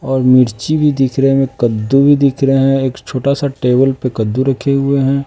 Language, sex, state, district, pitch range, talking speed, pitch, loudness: Hindi, male, Bihar, West Champaran, 130-140 Hz, 230 wpm, 135 Hz, -13 LUFS